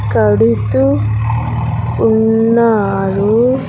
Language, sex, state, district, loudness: Telugu, female, Andhra Pradesh, Sri Satya Sai, -13 LUFS